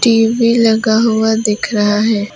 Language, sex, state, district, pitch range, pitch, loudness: Hindi, female, West Bengal, Alipurduar, 215-230 Hz, 220 Hz, -13 LUFS